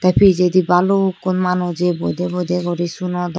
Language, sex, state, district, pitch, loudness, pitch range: Chakma, female, Tripura, Unakoti, 180 Hz, -17 LUFS, 180-185 Hz